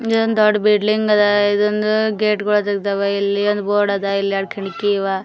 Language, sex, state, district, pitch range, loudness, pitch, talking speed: Kannada, female, Karnataka, Gulbarga, 200-210 Hz, -17 LUFS, 205 Hz, 185 wpm